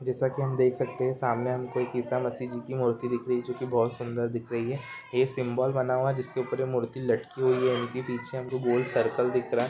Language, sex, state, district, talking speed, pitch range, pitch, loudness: Hindi, male, Jharkhand, Jamtara, 265 wpm, 120-130 Hz, 125 Hz, -29 LUFS